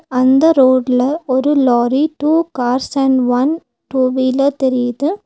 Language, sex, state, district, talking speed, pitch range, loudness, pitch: Tamil, female, Tamil Nadu, Nilgiris, 125 wpm, 255-295 Hz, -14 LUFS, 265 Hz